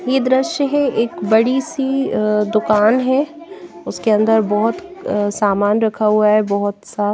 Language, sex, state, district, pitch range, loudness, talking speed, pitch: Hindi, female, Bihar, Patna, 210-265 Hz, -16 LUFS, 150 wpm, 220 Hz